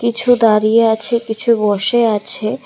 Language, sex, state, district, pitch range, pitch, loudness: Bengali, female, Tripura, West Tripura, 215-235 Hz, 225 Hz, -14 LUFS